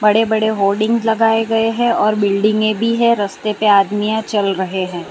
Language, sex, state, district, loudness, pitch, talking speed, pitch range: Hindi, female, Gujarat, Valsad, -15 LUFS, 215 Hz, 175 wpm, 205-225 Hz